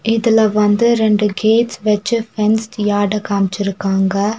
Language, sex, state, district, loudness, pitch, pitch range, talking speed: Tamil, female, Tamil Nadu, Nilgiris, -15 LUFS, 210 Hz, 205-225 Hz, 110 wpm